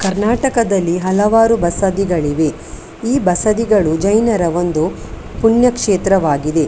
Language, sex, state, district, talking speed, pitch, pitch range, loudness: Kannada, female, Karnataka, Dakshina Kannada, 80 wpm, 195 Hz, 170-225 Hz, -15 LUFS